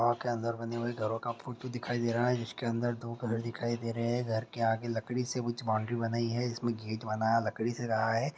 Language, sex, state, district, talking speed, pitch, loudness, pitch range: Hindi, male, Chhattisgarh, Bastar, 260 wpm, 115 Hz, -33 LUFS, 115-120 Hz